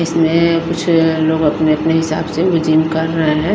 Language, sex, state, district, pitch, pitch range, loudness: Hindi, female, Himachal Pradesh, Shimla, 160 Hz, 160-165 Hz, -14 LUFS